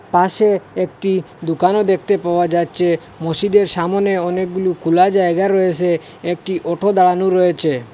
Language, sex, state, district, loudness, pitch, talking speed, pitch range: Bengali, male, Assam, Hailakandi, -16 LUFS, 180 Hz, 120 wpm, 170-190 Hz